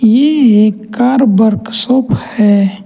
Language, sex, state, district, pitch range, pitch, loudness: Hindi, male, Jharkhand, Ranchi, 210-250 Hz, 225 Hz, -10 LUFS